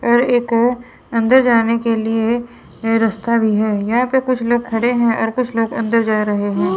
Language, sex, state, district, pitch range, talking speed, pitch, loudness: Hindi, female, Chandigarh, Chandigarh, 225-240 Hz, 205 wpm, 230 Hz, -16 LUFS